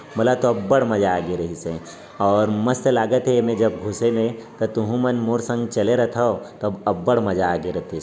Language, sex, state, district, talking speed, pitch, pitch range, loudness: Chhattisgarhi, male, Chhattisgarh, Raigarh, 200 wpm, 115 Hz, 100-120 Hz, -21 LUFS